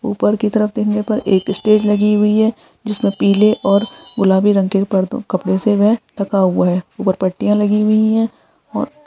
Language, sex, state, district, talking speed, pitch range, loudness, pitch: Hindi, female, Karnataka, Belgaum, 185 wpm, 195-215 Hz, -15 LUFS, 210 Hz